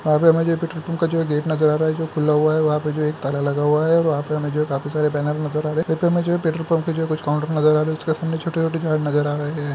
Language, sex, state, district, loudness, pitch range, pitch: Hindi, male, Bihar, Madhepura, -20 LUFS, 150-160 Hz, 155 Hz